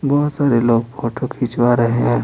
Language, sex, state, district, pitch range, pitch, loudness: Hindi, male, Bihar, Patna, 115-140 Hz, 120 Hz, -17 LUFS